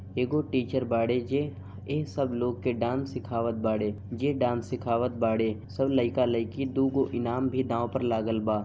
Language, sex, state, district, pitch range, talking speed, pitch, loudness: Bhojpuri, male, Bihar, Gopalganj, 115-130 Hz, 175 wpm, 120 Hz, -29 LUFS